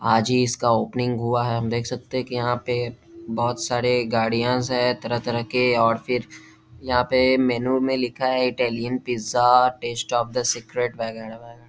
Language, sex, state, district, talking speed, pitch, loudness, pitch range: Hindi, male, Bihar, Jahanabad, 175 wpm, 120 Hz, -22 LUFS, 115-125 Hz